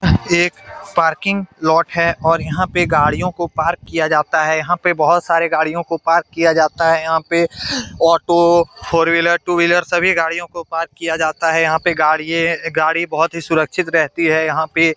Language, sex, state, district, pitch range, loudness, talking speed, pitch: Hindi, male, Bihar, Saran, 160-170 Hz, -16 LUFS, 180 wpm, 165 Hz